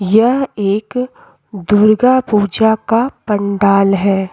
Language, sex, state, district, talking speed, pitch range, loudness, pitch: Hindi, female, Uttar Pradesh, Jyotiba Phule Nagar, 95 wpm, 200-230 Hz, -13 LUFS, 210 Hz